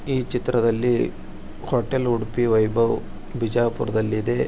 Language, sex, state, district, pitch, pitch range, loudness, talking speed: Kannada, male, Karnataka, Bijapur, 120 Hz, 115-125 Hz, -22 LUFS, 80 wpm